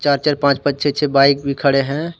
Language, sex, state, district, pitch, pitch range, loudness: Hindi, male, Jharkhand, Deoghar, 140 Hz, 140-145 Hz, -16 LUFS